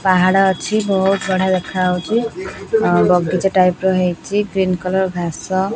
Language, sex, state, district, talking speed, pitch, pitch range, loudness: Odia, female, Odisha, Khordha, 145 wpm, 190 Hz, 180-195 Hz, -17 LUFS